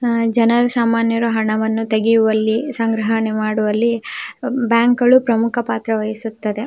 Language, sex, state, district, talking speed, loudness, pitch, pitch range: Kannada, female, Karnataka, Belgaum, 100 wpm, -17 LUFS, 230 Hz, 220-235 Hz